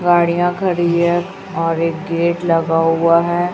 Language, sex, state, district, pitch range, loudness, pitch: Hindi, female, Chhattisgarh, Raipur, 165-175 Hz, -16 LUFS, 170 Hz